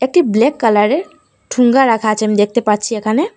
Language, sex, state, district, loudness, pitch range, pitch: Bengali, female, Assam, Hailakandi, -14 LUFS, 215-285 Hz, 235 Hz